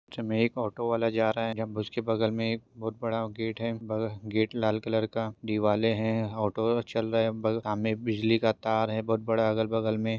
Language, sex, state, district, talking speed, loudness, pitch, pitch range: Hindi, male, Maharashtra, Chandrapur, 220 wpm, -29 LUFS, 110 Hz, 110-115 Hz